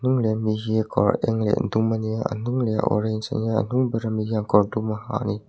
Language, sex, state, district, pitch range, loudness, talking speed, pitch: Mizo, male, Mizoram, Aizawl, 110-115 Hz, -23 LUFS, 275 wpm, 110 Hz